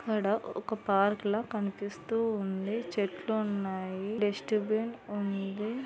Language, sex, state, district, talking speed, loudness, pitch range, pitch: Telugu, female, Andhra Pradesh, Anantapur, 115 wpm, -32 LUFS, 200-220 Hz, 205 Hz